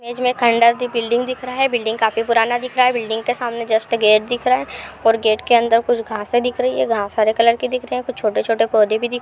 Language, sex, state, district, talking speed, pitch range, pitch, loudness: Hindi, female, Uttar Pradesh, Hamirpur, 265 wpm, 225-245 Hz, 235 Hz, -17 LUFS